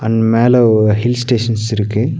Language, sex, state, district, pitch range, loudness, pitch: Tamil, male, Tamil Nadu, Nilgiris, 110-120 Hz, -13 LUFS, 115 Hz